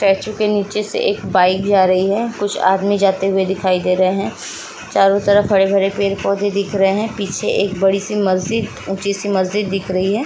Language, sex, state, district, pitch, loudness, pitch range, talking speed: Hindi, female, Uttar Pradesh, Jalaun, 195 Hz, -17 LUFS, 190-205 Hz, 195 wpm